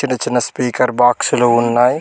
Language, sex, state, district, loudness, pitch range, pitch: Telugu, male, Telangana, Mahabubabad, -15 LUFS, 120-125 Hz, 125 Hz